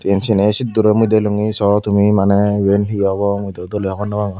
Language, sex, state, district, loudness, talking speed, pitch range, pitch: Chakma, female, Tripura, Unakoti, -15 LUFS, 230 wpm, 100-105 Hz, 100 Hz